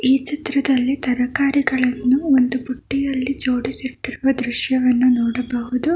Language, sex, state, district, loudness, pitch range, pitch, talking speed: Kannada, female, Karnataka, Bangalore, -19 LUFS, 250-270 Hz, 260 Hz, 80 wpm